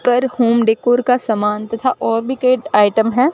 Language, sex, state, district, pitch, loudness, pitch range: Hindi, female, Rajasthan, Bikaner, 235 Hz, -15 LUFS, 220-255 Hz